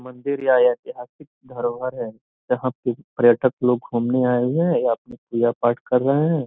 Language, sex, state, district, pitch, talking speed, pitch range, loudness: Hindi, male, Bihar, Gopalganj, 125 Hz, 185 wpm, 120-135 Hz, -21 LUFS